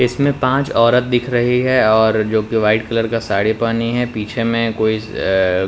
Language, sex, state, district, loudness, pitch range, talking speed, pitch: Hindi, male, Bihar, Patna, -16 LUFS, 110-125 Hz, 220 wpm, 115 Hz